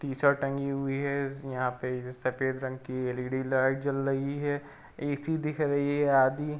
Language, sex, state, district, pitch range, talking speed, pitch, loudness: Hindi, male, Uttar Pradesh, Varanasi, 130-140 Hz, 200 wpm, 135 Hz, -30 LUFS